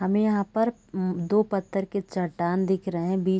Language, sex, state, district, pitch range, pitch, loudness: Hindi, female, Chhattisgarh, Raigarh, 185-200 Hz, 190 Hz, -26 LUFS